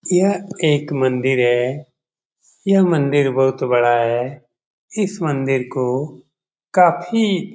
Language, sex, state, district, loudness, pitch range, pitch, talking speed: Hindi, male, Bihar, Jamui, -18 LUFS, 125-180 Hz, 140 Hz, 110 wpm